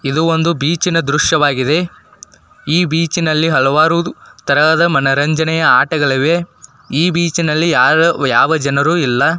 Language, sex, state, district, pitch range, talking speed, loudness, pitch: Kannada, male, Karnataka, Dakshina Kannada, 145-170 Hz, 95 wpm, -13 LUFS, 160 Hz